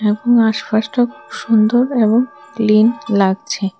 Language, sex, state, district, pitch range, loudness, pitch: Bengali, female, Tripura, West Tripura, 215-245 Hz, -15 LUFS, 225 Hz